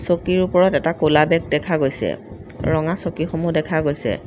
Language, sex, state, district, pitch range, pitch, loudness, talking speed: Assamese, female, Assam, Sonitpur, 150-170 Hz, 160 Hz, -19 LUFS, 155 wpm